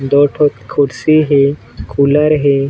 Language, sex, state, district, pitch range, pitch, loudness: Chhattisgarhi, male, Chhattisgarh, Bilaspur, 135-150 Hz, 140 Hz, -12 LUFS